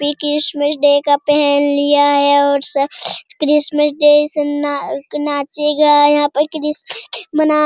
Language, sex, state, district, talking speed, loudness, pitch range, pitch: Hindi, male, Bihar, Jamui, 155 wpm, -14 LUFS, 285-300 Hz, 295 Hz